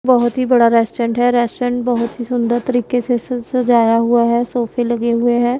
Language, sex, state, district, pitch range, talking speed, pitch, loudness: Hindi, female, Punjab, Pathankot, 235-245 Hz, 205 wpm, 240 Hz, -16 LUFS